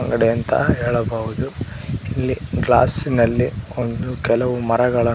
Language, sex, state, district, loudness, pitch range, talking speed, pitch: Kannada, male, Karnataka, Koppal, -19 LUFS, 115-125 Hz, 115 wpm, 120 Hz